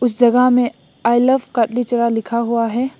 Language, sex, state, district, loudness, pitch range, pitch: Hindi, female, Assam, Hailakandi, -16 LUFS, 235-245 Hz, 240 Hz